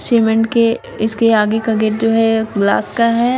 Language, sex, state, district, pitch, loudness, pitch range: Hindi, female, Uttar Pradesh, Shamli, 225 Hz, -15 LUFS, 220-230 Hz